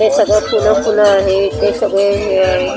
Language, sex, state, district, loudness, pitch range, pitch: Marathi, female, Maharashtra, Mumbai Suburban, -13 LUFS, 195-210 Hz, 200 Hz